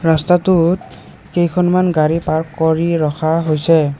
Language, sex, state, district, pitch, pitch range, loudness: Assamese, male, Assam, Kamrup Metropolitan, 165 Hz, 155-175 Hz, -15 LUFS